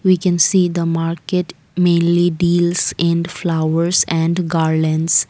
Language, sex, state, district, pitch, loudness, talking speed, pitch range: English, female, Assam, Kamrup Metropolitan, 170 Hz, -16 LUFS, 125 wpm, 165-180 Hz